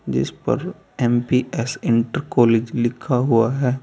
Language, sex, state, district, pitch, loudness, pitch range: Hindi, male, Uttar Pradesh, Saharanpur, 125 Hz, -20 LUFS, 120-135 Hz